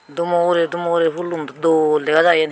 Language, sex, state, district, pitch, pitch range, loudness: Chakma, female, Tripura, Unakoti, 170 Hz, 155-175 Hz, -17 LUFS